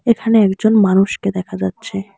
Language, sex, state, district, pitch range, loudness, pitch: Bengali, male, West Bengal, Alipurduar, 165-220 Hz, -15 LUFS, 195 Hz